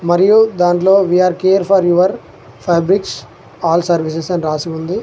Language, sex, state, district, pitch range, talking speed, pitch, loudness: Telugu, male, Telangana, Mahabubabad, 170-190 Hz, 155 wpm, 175 Hz, -13 LUFS